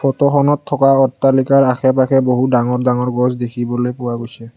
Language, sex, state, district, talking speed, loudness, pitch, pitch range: Assamese, male, Assam, Kamrup Metropolitan, 170 wpm, -15 LUFS, 130 Hz, 125-135 Hz